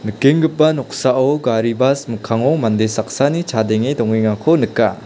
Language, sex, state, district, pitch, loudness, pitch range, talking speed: Garo, male, Meghalaya, South Garo Hills, 120 Hz, -16 LUFS, 110-140 Hz, 120 wpm